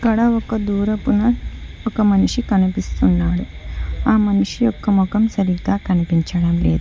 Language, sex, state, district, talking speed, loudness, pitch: Telugu, female, Telangana, Hyderabad, 125 wpm, -18 LUFS, 190 Hz